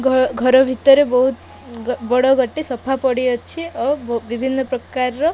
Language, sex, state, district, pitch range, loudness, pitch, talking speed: Odia, female, Odisha, Malkangiri, 250-270 Hz, -17 LUFS, 260 Hz, 135 wpm